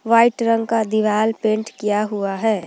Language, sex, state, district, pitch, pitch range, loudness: Hindi, female, Jharkhand, Palamu, 215 Hz, 210-225 Hz, -19 LUFS